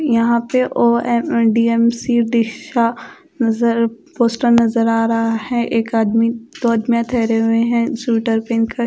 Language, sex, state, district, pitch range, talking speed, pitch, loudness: Hindi, female, Odisha, Khordha, 230-235 Hz, 130 wpm, 235 Hz, -16 LUFS